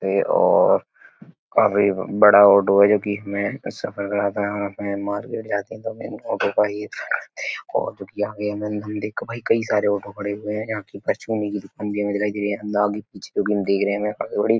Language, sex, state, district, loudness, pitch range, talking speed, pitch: Hindi, male, Uttar Pradesh, Etah, -22 LUFS, 100-105 Hz, 180 wpm, 105 Hz